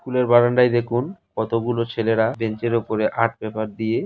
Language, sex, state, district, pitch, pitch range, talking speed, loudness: Bengali, male, West Bengal, North 24 Parganas, 115 Hz, 110-120 Hz, 145 wpm, -21 LUFS